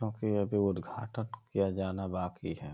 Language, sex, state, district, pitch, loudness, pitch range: Hindi, male, Uttar Pradesh, Ghazipur, 100 Hz, -34 LUFS, 95-110 Hz